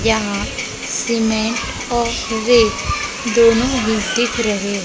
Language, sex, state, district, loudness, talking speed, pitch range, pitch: Hindi, female, Maharashtra, Gondia, -17 LUFS, 110 wpm, 220-235 Hz, 225 Hz